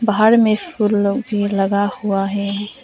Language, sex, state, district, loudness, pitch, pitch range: Hindi, female, Arunachal Pradesh, Lower Dibang Valley, -17 LUFS, 205 Hz, 200-215 Hz